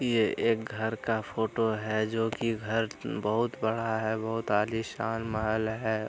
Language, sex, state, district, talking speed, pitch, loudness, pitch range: Hindi, male, Bihar, Araria, 160 wpm, 110 Hz, -30 LUFS, 110-115 Hz